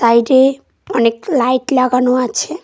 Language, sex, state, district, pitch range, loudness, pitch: Bengali, female, West Bengal, Cooch Behar, 240-260 Hz, -14 LUFS, 255 Hz